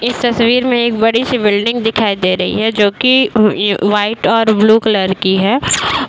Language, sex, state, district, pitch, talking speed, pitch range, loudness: Hindi, female, Uttar Pradesh, Varanasi, 220 Hz, 185 wpm, 205-235 Hz, -12 LUFS